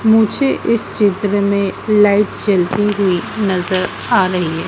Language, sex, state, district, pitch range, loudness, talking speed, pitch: Hindi, female, Madhya Pradesh, Dhar, 185-210 Hz, -15 LUFS, 130 wpm, 200 Hz